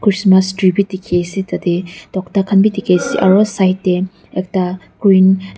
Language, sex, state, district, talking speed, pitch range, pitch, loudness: Nagamese, female, Nagaland, Dimapur, 185 wpm, 185-195 Hz, 190 Hz, -14 LUFS